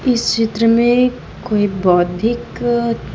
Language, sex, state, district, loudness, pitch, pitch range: Hindi, female, Chhattisgarh, Raipur, -16 LUFS, 230 Hz, 205-240 Hz